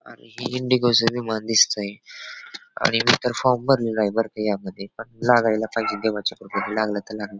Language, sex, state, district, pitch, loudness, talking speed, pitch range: Marathi, male, Maharashtra, Pune, 115 Hz, -22 LUFS, 180 wpm, 105-125 Hz